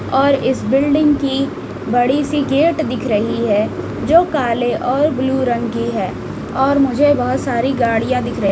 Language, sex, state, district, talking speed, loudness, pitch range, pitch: Hindi, female, Chhattisgarh, Raipur, 170 wpm, -16 LUFS, 240-285 Hz, 265 Hz